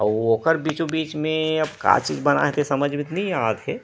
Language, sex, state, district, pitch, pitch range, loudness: Chhattisgarhi, male, Chhattisgarh, Rajnandgaon, 155 Hz, 145-160 Hz, -22 LUFS